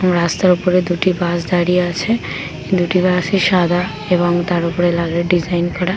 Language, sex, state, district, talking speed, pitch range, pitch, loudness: Bengali, female, West Bengal, Paschim Medinipur, 180 wpm, 175-180 Hz, 175 Hz, -16 LUFS